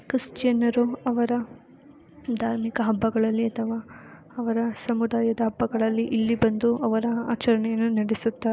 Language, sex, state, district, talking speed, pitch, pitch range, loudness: Kannada, female, Karnataka, Bellary, 100 wpm, 230 Hz, 225-235 Hz, -25 LUFS